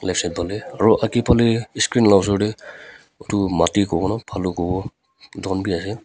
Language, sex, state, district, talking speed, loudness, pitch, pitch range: Nagamese, female, Nagaland, Kohima, 180 wpm, -20 LUFS, 100 Hz, 95-110 Hz